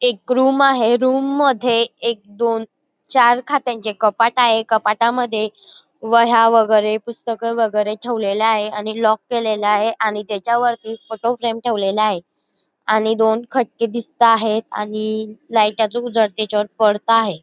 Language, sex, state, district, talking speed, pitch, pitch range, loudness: Marathi, female, Maharashtra, Dhule, 135 wpm, 225 Hz, 215-235 Hz, -17 LUFS